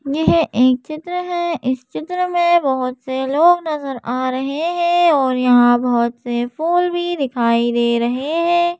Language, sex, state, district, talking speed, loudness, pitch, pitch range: Hindi, female, Madhya Pradesh, Bhopal, 165 wpm, -17 LUFS, 275 Hz, 250-345 Hz